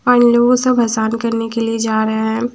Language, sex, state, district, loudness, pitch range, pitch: Hindi, female, Haryana, Charkhi Dadri, -15 LUFS, 220-240 Hz, 230 Hz